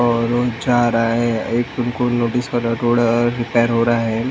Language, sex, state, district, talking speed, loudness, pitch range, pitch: Hindi, male, Maharashtra, Mumbai Suburban, 225 wpm, -18 LUFS, 115-120 Hz, 120 Hz